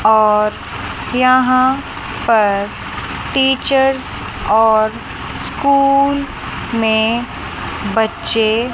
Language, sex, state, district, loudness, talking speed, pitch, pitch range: Hindi, female, Chandigarh, Chandigarh, -15 LUFS, 55 wpm, 235 Hz, 220-270 Hz